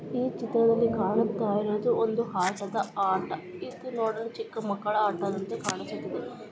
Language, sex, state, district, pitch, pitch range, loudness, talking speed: Kannada, female, Karnataka, Gulbarga, 220 Hz, 200-230 Hz, -29 LUFS, 120 wpm